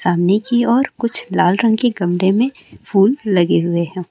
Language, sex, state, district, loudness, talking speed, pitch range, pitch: Hindi, female, Uttarakhand, Uttarkashi, -16 LUFS, 190 wpm, 180-235 Hz, 200 Hz